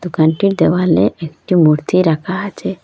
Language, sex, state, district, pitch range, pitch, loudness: Bengali, female, Assam, Hailakandi, 160-185 Hz, 175 Hz, -14 LUFS